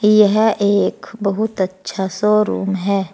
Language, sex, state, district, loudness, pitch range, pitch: Hindi, female, Uttar Pradesh, Saharanpur, -17 LUFS, 190-210 Hz, 200 Hz